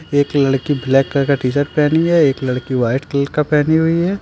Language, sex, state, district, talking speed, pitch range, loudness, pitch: Hindi, male, Jharkhand, Deoghar, 240 wpm, 135-155 Hz, -16 LUFS, 145 Hz